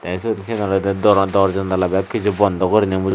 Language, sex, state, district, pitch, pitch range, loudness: Chakma, male, Tripura, Dhalai, 95 Hz, 95-105 Hz, -18 LUFS